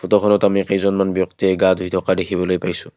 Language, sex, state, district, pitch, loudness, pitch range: Assamese, male, Assam, Kamrup Metropolitan, 95 Hz, -18 LUFS, 90-100 Hz